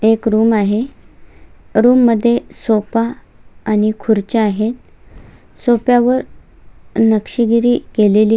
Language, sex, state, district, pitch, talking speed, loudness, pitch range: Marathi, female, Maharashtra, Solapur, 225 Hz, 105 wpm, -15 LUFS, 215-240 Hz